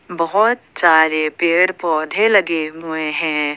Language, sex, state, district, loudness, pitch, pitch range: Hindi, female, Jharkhand, Ranchi, -16 LUFS, 165 Hz, 155-180 Hz